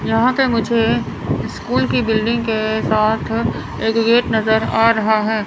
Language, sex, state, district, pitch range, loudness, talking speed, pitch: Hindi, male, Chandigarh, Chandigarh, 220-230 Hz, -17 LUFS, 155 wpm, 225 Hz